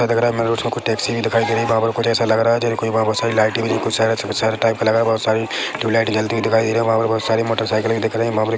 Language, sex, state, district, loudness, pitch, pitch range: Hindi, male, Chhattisgarh, Rajnandgaon, -18 LUFS, 115 Hz, 110-115 Hz